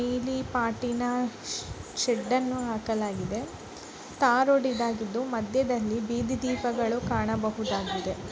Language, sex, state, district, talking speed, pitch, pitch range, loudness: Kannada, female, Karnataka, Dakshina Kannada, 95 wpm, 240 Hz, 220-250 Hz, -28 LUFS